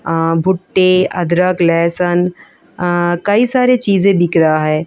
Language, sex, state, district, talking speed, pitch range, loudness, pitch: Hindi, female, Delhi, New Delhi, 110 wpm, 170-185 Hz, -13 LUFS, 175 Hz